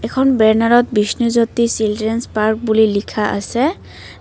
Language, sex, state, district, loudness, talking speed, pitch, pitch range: Assamese, female, Assam, Kamrup Metropolitan, -16 LUFS, 130 wpm, 220 Hz, 215-235 Hz